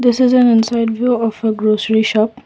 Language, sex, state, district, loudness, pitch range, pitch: English, female, Assam, Kamrup Metropolitan, -14 LUFS, 220-245 Hz, 230 Hz